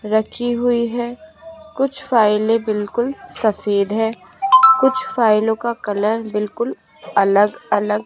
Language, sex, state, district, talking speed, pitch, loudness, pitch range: Hindi, female, Rajasthan, Jaipur, 120 wpm, 230 Hz, -18 LUFS, 210-260 Hz